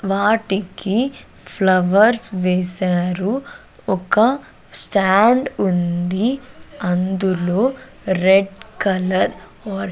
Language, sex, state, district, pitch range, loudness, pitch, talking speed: Telugu, female, Andhra Pradesh, Sri Satya Sai, 185-225 Hz, -18 LUFS, 195 Hz, 60 wpm